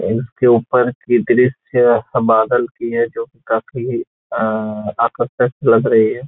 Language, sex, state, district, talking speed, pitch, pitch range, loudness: Hindi, male, Bihar, Saran, 135 wpm, 120 Hz, 115-125 Hz, -16 LUFS